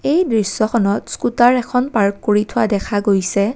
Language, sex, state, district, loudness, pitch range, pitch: Assamese, female, Assam, Kamrup Metropolitan, -17 LUFS, 200-240 Hz, 215 Hz